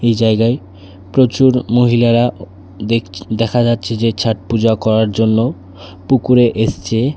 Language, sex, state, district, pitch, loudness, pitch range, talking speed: Bengali, male, Tripura, West Tripura, 115 Hz, -14 LUFS, 105-120 Hz, 115 wpm